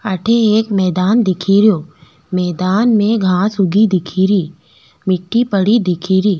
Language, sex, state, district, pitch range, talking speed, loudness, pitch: Rajasthani, female, Rajasthan, Nagaur, 180-215 Hz, 110 wpm, -14 LUFS, 190 Hz